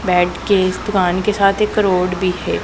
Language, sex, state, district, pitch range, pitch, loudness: Hindi, female, Punjab, Pathankot, 180-200 Hz, 185 Hz, -16 LUFS